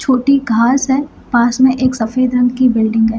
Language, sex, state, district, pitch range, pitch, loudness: Hindi, female, Bihar, Gopalganj, 235-260 Hz, 250 Hz, -13 LUFS